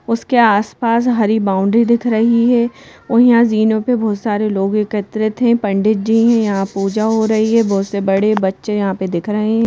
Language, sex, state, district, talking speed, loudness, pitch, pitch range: Hindi, female, Madhya Pradesh, Bhopal, 205 wpm, -15 LUFS, 215 Hz, 205-230 Hz